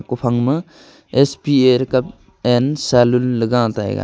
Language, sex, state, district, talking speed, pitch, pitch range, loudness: Wancho, male, Arunachal Pradesh, Longding, 195 wpm, 125 Hz, 120-135 Hz, -16 LUFS